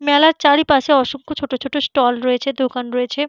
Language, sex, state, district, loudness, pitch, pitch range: Bengali, female, West Bengal, Purulia, -17 LUFS, 275 Hz, 255-290 Hz